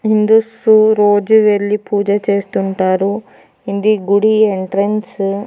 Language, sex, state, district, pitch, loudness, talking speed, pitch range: Telugu, female, Andhra Pradesh, Annamaya, 205 Hz, -13 LUFS, 100 wpm, 200-215 Hz